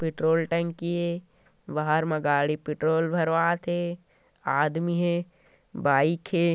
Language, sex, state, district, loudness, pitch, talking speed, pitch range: Hindi, male, Chhattisgarh, Korba, -26 LUFS, 170 Hz, 130 wpm, 155-175 Hz